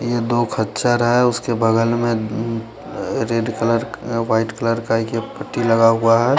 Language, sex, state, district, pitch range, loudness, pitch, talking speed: Hindi, male, Chandigarh, Chandigarh, 115-120 Hz, -19 LUFS, 115 Hz, 170 wpm